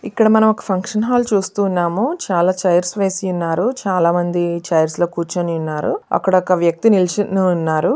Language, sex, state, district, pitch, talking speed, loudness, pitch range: Telugu, female, Andhra Pradesh, Visakhapatnam, 185 Hz, 165 wpm, -17 LUFS, 175-205 Hz